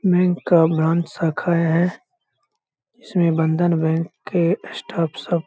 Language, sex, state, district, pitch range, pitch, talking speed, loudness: Hindi, male, Bihar, Saharsa, 165-180 Hz, 170 Hz, 130 wpm, -20 LUFS